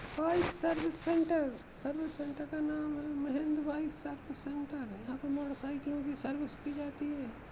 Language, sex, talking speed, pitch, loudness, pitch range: Awadhi, female, 160 wpm, 290 Hz, -37 LUFS, 280-305 Hz